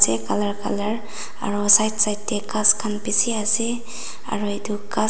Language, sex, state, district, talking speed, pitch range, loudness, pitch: Nagamese, female, Nagaland, Dimapur, 165 wpm, 205-215 Hz, -20 LUFS, 210 Hz